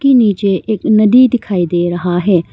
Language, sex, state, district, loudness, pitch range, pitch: Hindi, female, Arunachal Pradesh, Longding, -12 LUFS, 175-225 Hz, 200 Hz